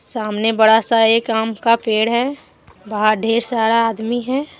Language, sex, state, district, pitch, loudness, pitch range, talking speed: Hindi, female, Jharkhand, Deoghar, 225 Hz, -16 LUFS, 220-235 Hz, 170 wpm